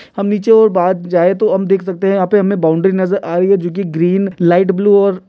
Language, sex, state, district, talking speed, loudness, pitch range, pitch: Hindi, male, Bihar, Kishanganj, 285 wpm, -13 LUFS, 180-200 Hz, 190 Hz